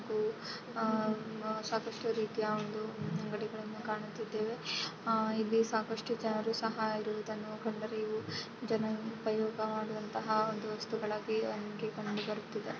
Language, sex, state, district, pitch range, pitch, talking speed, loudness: Kannada, female, Karnataka, Dakshina Kannada, 215-220 Hz, 220 Hz, 85 wpm, -36 LUFS